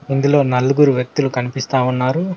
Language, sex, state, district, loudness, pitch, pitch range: Telugu, male, Telangana, Mahabubabad, -16 LUFS, 135 Hz, 125-145 Hz